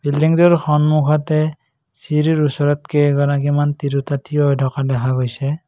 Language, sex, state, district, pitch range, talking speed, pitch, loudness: Assamese, male, Assam, Kamrup Metropolitan, 140-150 Hz, 115 wpm, 145 Hz, -17 LUFS